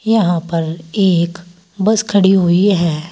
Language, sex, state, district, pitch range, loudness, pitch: Hindi, female, Uttar Pradesh, Saharanpur, 170-200 Hz, -14 LUFS, 180 Hz